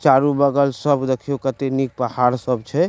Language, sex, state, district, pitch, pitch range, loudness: Maithili, male, Bihar, Supaul, 135 Hz, 125-140 Hz, -19 LUFS